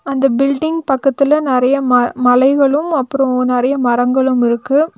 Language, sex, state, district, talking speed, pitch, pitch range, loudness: Tamil, female, Tamil Nadu, Nilgiris, 120 wpm, 270 Hz, 250-280 Hz, -14 LUFS